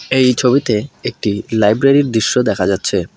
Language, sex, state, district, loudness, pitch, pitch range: Bengali, male, West Bengal, Alipurduar, -15 LUFS, 125 Hz, 110-135 Hz